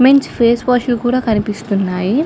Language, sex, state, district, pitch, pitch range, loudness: Telugu, female, Andhra Pradesh, Chittoor, 235 Hz, 210-255 Hz, -15 LUFS